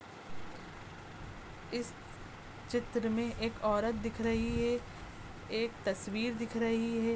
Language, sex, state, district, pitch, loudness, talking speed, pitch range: Hindi, female, Goa, North and South Goa, 230 Hz, -35 LUFS, 110 wpm, 225-235 Hz